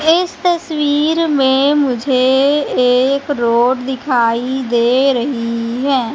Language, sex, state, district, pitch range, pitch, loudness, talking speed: Hindi, female, Madhya Pradesh, Katni, 250-290 Hz, 265 Hz, -14 LUFS, 95 wpm